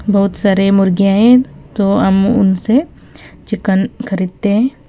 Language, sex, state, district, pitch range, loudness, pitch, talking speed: Hindi, female, Punjab, Kapurthala, 195-225 Hz, -13 LUFS, 200 Hz, 120 wpm